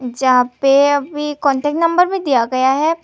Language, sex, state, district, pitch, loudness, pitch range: Hindi, female, Tripura, Unakoti, 285 Hz, -15 LUFS, 260-295 Hz